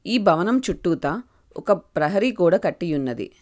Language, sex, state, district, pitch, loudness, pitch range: Telugu, female, Telangana, Karimnagar, 175 Hz, -22 LUFS, 155-220 Hz